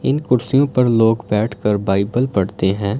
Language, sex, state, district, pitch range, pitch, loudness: Hindi, male, Punjab, Fazilka, 100-125 Hz, 110 Hz, -17 LUFS